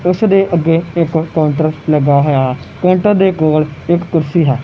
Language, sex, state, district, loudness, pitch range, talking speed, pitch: Punjabi, male, Punjab, Kapurthala, -13 LUFS, 150-175 Hz, 170 wpm, 165 Hz